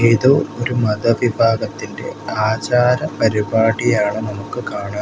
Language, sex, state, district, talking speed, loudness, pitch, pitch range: Malayalam, male, Kerala, Kollam, 95 wpm, -18 LUFS, 115 Hz, 105-120 Hz